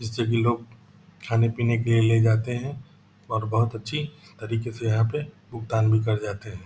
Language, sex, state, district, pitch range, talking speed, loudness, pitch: Hindi, male, Bihar, Purnia, 110-120 Hz, 180 wpm, -25 LUFS, 115 Hz